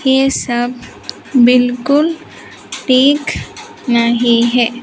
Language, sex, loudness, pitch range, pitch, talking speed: Hindi, female, -13 LUFS, 240-270 Hz, 250 Hz, 75 wpm